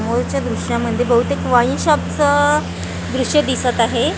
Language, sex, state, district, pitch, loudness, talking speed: Marathi, female, Maharashtra, Gondia, 235 Hz, -17 LUFS, 130 wpm